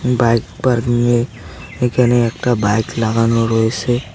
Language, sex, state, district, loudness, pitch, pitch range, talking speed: Bengali, male, West Bengal, Cooch Behar, -16 LUFS, 115 Hz, 110-120 Hz, 115 wpm